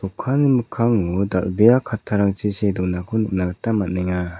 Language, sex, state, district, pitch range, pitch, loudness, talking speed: Garo, male, Meghalaya, South Garo Hills, 90-115 Hz, 100 Hz, -20 LUFS, 120 wpm